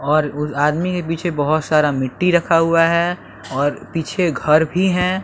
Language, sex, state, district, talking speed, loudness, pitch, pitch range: Hindi, male, Bihar, West Champaran, 170 wpm, -18 LUFS, 165 Hz, 150-175 Hz